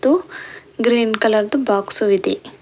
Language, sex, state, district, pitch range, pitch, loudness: Kannada, female, Karnataka, Bidar, 215-295 Hz, 235 Hz, -17 LUFS